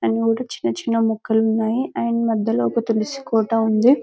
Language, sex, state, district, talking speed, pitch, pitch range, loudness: Telugu, female, Telangana, Karimnagar, 165 wpm, 225 Hz, 220-235 Hz, -20 LUFS